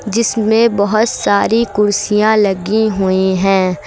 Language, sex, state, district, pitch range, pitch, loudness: Hindi, female, Uttar Pradesh, Lucknow, 195-220 Hz, 210 Hz, -13 LUFS